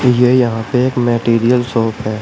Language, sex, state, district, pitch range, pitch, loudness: Hindi, male, Uttar Pradesh, Shamli, 115-125 Hz, 120 Hz, -14 LUFS